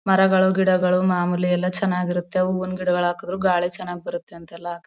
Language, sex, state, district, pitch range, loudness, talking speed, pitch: Kannada, female, Karnataka, Mysore, 175-185 Hz, -21 LUFS, 160 wpm, 180 Hz